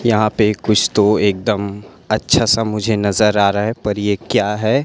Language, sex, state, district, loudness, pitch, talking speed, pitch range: Hindi, male, Chhattisgarh, Raipur, -16 LUFS, 105 Hz, 210 wpm, 100-110 Hz